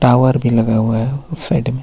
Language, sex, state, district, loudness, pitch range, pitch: Hindi, male, Jharkhand, Ranchi, -15 LUFS, 115-140 Hz, 125 Hz